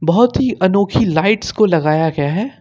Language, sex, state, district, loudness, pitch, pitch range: Hindi, male, Jharkhand, Ranchi, -15 LUFS, 190 Hz, 160-215 Hz